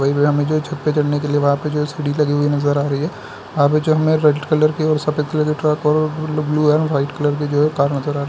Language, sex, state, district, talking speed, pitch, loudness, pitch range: Hindi, male, Bihar, Madhepura, 310 wpm, 150 Hz, -18 LUFS, 145-155 Hz